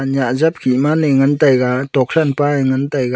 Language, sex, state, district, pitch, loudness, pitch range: Wancho, male, Arunachal Pradesh, Longding, 135 Hz, -15 LUFS, 130-145 Hz